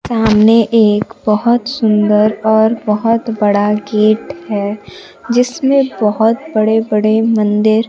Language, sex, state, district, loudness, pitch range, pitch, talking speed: Hindi, female, Bihar, Kaimur, -13 LUFS, 210-230 Hz, 220 Hz, 105 wpm